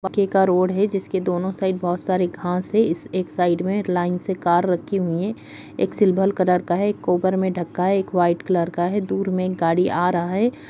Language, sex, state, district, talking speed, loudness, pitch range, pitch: Kumaoni, female, Uttarakhand, Uttarkashi, 235 wpm, -21 LUFS, 175-195 Hz, 185 Hz